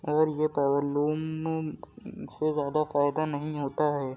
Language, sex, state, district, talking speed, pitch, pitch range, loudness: Hindi, male, Uttar Pradesh, Muzaffarnagar, 115 wpm, 150 Hz, 145-155 Hz, -28 LUFS